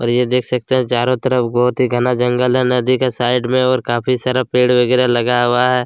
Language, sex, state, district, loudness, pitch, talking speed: Hindi, male, Chhattisgarh, Kabirdham, -15 LUFS, 125 Hz, 245 wpm